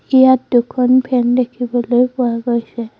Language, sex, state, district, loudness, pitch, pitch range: Assamese, female, Assam, Sonitpur, -15 LUFS, 245 Hz, 240-255 Hz